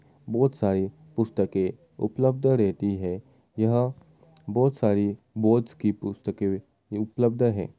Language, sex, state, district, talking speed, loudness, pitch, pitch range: Hindi, male, Uttar Pradesh, Muzaffarnagar, 110 wpm, -26 LUFS, 110 Hz, 100-130 Hz